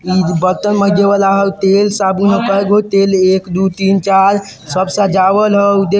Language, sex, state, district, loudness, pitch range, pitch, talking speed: Bajjika, male, Bihar, Vaishali, -12 LUFS, 190-200 Hz, 195 Hz, 180 wpm